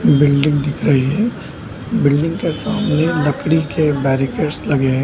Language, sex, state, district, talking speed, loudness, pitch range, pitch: Hindi, male, Bihar, Samastipur, 145 wpm, -17 LUFS, 135-155 Hz, 145 Hz